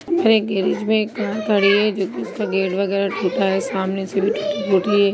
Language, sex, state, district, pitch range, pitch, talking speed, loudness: Hindi, female, Uttar Pradesh, Jyotiba Phule Nagar, 195-215 Hz, 200 Hz, 235 wpm, -19 LUFS